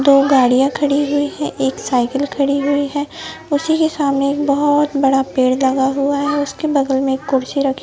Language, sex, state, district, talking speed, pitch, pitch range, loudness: Hindi, male, Madhya Pradesh, Bhopal, 190 wpm, 280 Hz, 270-290 Hz, -16 LUFS